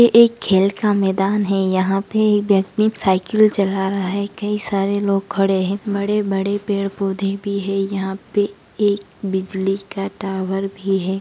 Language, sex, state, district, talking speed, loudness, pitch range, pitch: Hindi, female, Bihar, Begusarai, 165 wpm, -19 LUFS, 195-205 Hz, 195 Hz